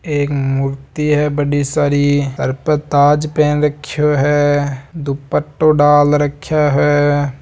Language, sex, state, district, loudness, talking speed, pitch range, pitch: Marwari, male, Rajasthan, Nagaur, -15 LUFS, 120 wpm, 145-150 Hz, 145 Hz